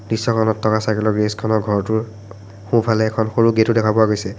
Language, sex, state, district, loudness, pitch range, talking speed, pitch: Assamese, male, Assam, Sonitpur, -18 LUFS, 105-110 Hz, 165 wpm, 110 Hz